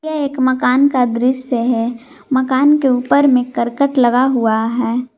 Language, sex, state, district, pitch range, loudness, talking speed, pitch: Hindi, female, Jharkhand, Garhwa, 240-270 Hz, -15 LUFS, 160 wpm, 255 Hz